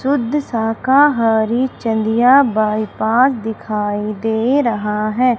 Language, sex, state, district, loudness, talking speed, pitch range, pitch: Hindi, female, Madhya Pradesh, Umaria, -16 LUFS, 90 wpm, 220-255 Hz, 225 Hz